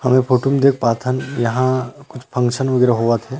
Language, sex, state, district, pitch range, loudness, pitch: Chhattisgarhi, male, Chhattisgarh, Rajnandgaon, 125-130 Hz, -17 LUFS, 130 Hz